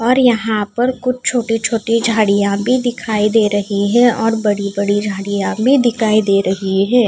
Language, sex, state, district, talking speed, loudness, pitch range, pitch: Hindi, female, Haryana, Charkhi Dadri, 180 wpm, -15 LUFS, 205-240 Hz, 220 Hz